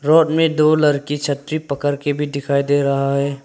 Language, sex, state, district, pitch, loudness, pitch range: Hindi, male, Arunachal Pradesh, Longding, 145 Hz, -18 LUFS, 140-155 Hz